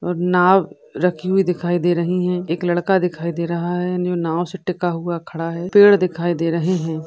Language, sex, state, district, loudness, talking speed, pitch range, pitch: Hindi, female, Rajasthan, Churu, -19 LUFS, 220 wpm, 170-180 Hz, 175 Hz